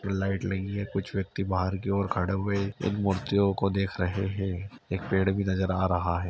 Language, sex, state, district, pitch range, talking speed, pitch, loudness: Hindi, male, Uttar Pradesh, Etah, 95-100 Hz, 220 wpm, 95 Hz, -29 LUFS